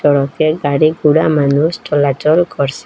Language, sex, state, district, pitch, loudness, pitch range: Bengali, female, Assam, Hailakandi, 150 Hz, -13 LUFS, 140-155 Hz